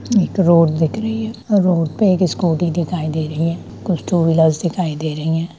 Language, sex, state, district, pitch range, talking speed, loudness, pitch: Hindi, female, Bihar, Darbhanga, 160-185 Hz, 225 wpm, -17 LUFS, 170 Hz